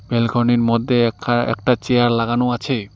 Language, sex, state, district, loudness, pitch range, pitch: Bengali, male, West Bengal, Alipurduar, -18 LUFS, 115-120 Hz, 120 Hz